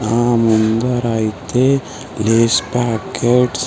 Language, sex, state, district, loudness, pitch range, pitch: Telugu, male, Andhra Pradesh, Sri Satya Sai, -16 LUFS, 110-125 Hz, 115 Hz